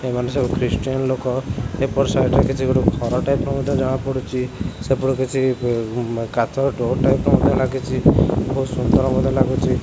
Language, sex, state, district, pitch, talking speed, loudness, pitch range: Odia, male, Odisha, Khordha, 130 Hz, 175 wpm, -19 LUFS, 120-135 Hz